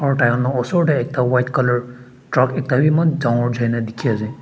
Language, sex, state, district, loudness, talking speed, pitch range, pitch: Nagamese, male, Nagaland, Dimapur, -18 LUFS, 190 wpm, 120-135 Hz, 125 Hz